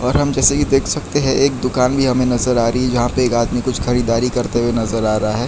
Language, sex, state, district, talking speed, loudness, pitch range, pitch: Hindi, male, Gujarat, Valsad, 295 wpm, -16 LUFS, 120-130 Hz, 125 Hz